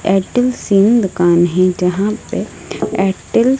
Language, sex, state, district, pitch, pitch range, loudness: Hindi, female, Odisha, Malkangiri, 195 Hz, 180-230 Hz, -15 LUFS